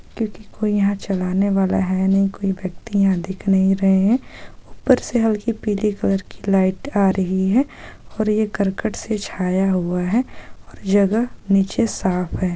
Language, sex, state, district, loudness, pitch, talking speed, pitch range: Hindi, female, Jharkhand, Sahebganj, -20 LUFS, 195 Hz, 170 wpm, 190-215 Hz